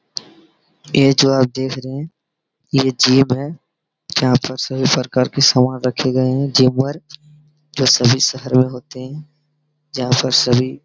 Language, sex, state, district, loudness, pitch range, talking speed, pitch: Hindi, male, Bihar, Araria, -16 LUFS, 130-150 Hz, 165 wpm, 130 Hz